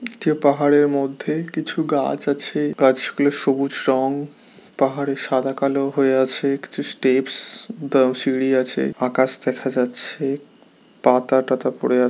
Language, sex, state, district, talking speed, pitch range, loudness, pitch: Bengali, male, West Bengal, Paschim Medinipur, 135 wpm, 130-145 Hz, -20 LUFS, 140 Hz